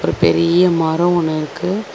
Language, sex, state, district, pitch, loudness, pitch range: Tamil, female, Tamil Nadu, Chennai, 170 Hz, -16 LUFS, 160-180 Hz